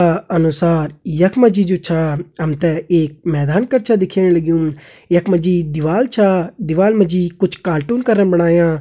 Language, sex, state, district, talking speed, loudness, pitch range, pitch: Hindi, male, Uttarakhand, Uttarkashi, 185 wpm, -15 LUFS, 165-195 Hz, 175 Hz